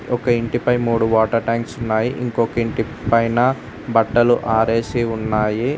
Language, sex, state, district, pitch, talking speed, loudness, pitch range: Telugu, male, Telangana, Mahabubabad, 115 Hz, 115 wpm, -19 LUFS, 115-120 Hz